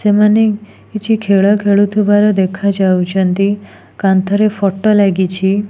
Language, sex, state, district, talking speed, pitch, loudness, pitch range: Odia, female, Odisha, Nuapada, 105 wpm, 200 Hz, -13 LUFS, 195-210 Hz